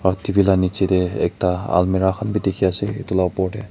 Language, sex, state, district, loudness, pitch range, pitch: Nagamese, male, Nagaland, Kohima, -19 LUFS, 95-100 Hz, 95 Hz